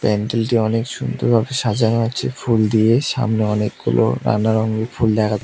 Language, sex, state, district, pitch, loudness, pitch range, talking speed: Bengali, male, West Bengal, Cooch Behar, 115 Hz, -18 LUFS, 110-115 Hz, 155 wpm